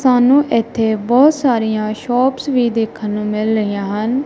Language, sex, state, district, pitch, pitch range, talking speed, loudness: Punjabi, female, Punjab, Kapurthala, 230 Hz, 215-260 Hz, 155 wpm, -15 LUFS